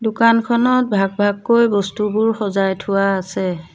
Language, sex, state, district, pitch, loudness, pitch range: Assamese, female, Assam, Sonitpur, 205 Hz, -17 LUFS, 195-230 Hz